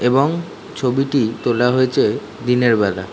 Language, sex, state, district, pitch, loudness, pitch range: Bengali, male, West Bengal, Dakshin Dinajpur, 125 Hz, -18 LUFS, 115-135 Hz